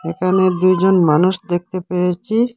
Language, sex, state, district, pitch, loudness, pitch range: Bengali, female, Assam, Hailakandi, 185 Hz, -16 LUFS, 175-190 Hz